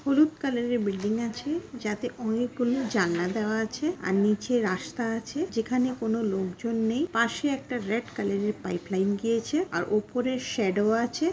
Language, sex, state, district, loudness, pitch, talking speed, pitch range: Bengali, female, West Bengal, Kolkata, -28 LUFS, 230 Hz, 160 wpm, 210-250 Hz